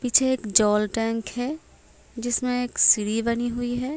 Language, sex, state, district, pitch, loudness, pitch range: Hindi, female, Uttar Pradesh, Varanasi, 240 Hz, -23 LUFS, 225-250 Hz